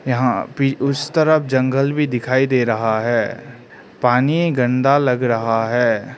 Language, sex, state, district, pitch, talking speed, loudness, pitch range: Hindi, male, Arunachal Pradesh, Lower Dibang Valley, 130 Hz, 135 wpm, -17 LUFS, 120-140 Hz